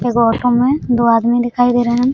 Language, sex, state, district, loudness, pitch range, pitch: Hindi, female, Bihar, Araria, -14 LUFS, 235-245 Hz, 240 Hz